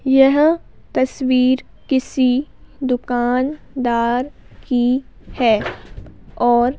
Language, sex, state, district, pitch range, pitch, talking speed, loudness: Hindi, female, Madhya Pradesh, Bhopal, 245-270 Hz, 255 Hz, 60 wpm, -18 LUFS